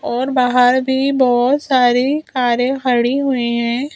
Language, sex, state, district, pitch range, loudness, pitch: Hindi, female, Madhya Pradesh, Bhopal, 245-270 Hz, -15 LUFS, 255 Hz